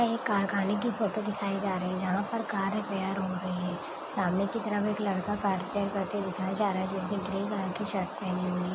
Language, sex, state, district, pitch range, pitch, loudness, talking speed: Hindi, female, Bihar, Saharsa, 185-205 Hz, 195 Hz, -31 LUFS, 245 wpm